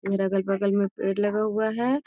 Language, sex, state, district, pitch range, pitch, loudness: Magahi, female, Bihar, Gaya, 195-220 Hz, 200 Hz, -25 LUFS